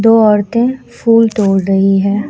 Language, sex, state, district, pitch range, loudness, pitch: Hindi, female, Jharkhand, Deoghar, 195-230 Hz, -12 LUFS, 215 Hz